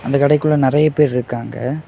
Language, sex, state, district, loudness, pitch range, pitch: Tamil, male, Tamil Nadu, Kanyakumari, -16 LUFS, 125-150 Hz, 140 Hz